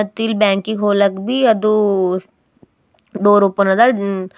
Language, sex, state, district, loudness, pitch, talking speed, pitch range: Kannada, female, Karnataka, Bidar, -15 LUFS, 205 Hz, 165 wpm, 195-215 Hz